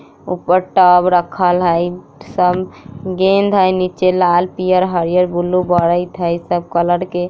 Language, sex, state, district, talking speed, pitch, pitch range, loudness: Bajjika, female, Bihar, Vaishali, 150 wpm, 180 Hz, 175-185 Hz, -15 LUFS